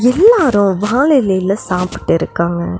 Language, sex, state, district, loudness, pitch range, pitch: Tamil, female, Tamil Nadu, Nilgiris, -13 LUFS, 180-265 Hz, 205 Hz